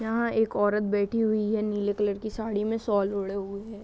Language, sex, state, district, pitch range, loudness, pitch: Hindi, female, Uttar Pradesh, Hamirpur, 205-220 Hz, -27 LUFS, 210 Hz